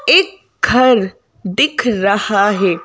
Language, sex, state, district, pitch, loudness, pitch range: Hindi, female, Madhya Pradesh, Bhopal, 215 Hz, -14 LUFS, 200-255 Hz